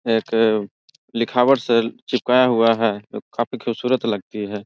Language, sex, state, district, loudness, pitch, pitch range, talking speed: Hindi, male, Bihar, Jahanabad, -19 LUFS, 115 Hz, 110-125 Hz, 130 wpm